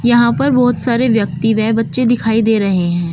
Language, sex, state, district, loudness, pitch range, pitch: Hindi, female, Uttar Pradesh, Shamli, -14 LUFS, 215-240 Hz, 225 Hz